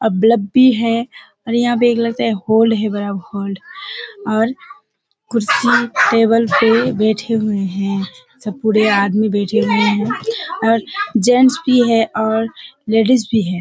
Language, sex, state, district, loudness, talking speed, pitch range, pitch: Hindi, female, Bihar, Kishanganj, -15 LUFS, 135 wpm, 215-240 Hz, 225 Hz